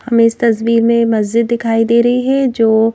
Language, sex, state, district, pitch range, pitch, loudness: Hindi, female, Madhya Pradesh, Bhopal, 225-235 Hz, 230 Hz, -13 LUFS